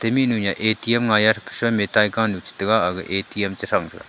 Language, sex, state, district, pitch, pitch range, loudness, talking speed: Wancho, male, Arunachal Pradesh, Longding, 110 Hz, 105-115 Hz, -20 LUFS, 205 wpm